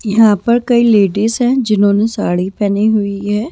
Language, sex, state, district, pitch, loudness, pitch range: Hindi, female, Himachal Pradesh, Shimla, 215 Hz, -13 LUFS, 205-235 Hz